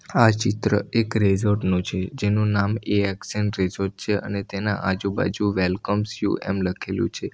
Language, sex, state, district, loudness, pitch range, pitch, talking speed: Gujarati, male, Gujarat, Valsad, -23 LUFS, 95-105 Hz, 100 Hz, 170 wpm